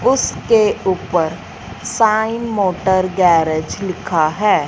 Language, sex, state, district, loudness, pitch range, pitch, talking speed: Hindi, female, Punjab, Fazilka, -16 LUFS, 170-220 Hz, 190 Hz, 90 wpm